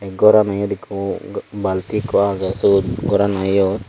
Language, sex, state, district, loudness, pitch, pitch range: Chakma, male, Tripura, Dhalai, -18 LUFS, 100 Hz, 95-105 Hz